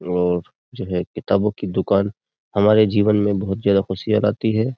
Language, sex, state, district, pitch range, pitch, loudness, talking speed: Hindi, male, Uttar Pradesh, Jyotiba Phule Nagar, 95-105 Hz, 100 Hz, -20 LUFS, 190 wpm